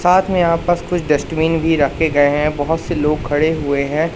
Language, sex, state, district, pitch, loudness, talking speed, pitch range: Hindi, male, Madhya Pradesh, Katni, 160 Hz, -16 LUFS, 230 wpm, 145-170 Hz